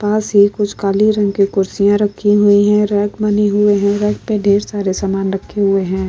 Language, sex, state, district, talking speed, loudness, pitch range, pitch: Hindi, female, Uttar Pradesh, Jalaun, 215 wpm, -14 LUFS, 200-210 Hz, 205 Hz